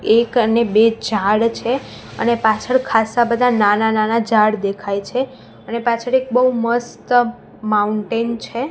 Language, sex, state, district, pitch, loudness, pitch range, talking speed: Gujarati, female, Gujarat, Gandhinagar, 230 Hz, -17 LUFS, 215-240 Hz, 145 wpm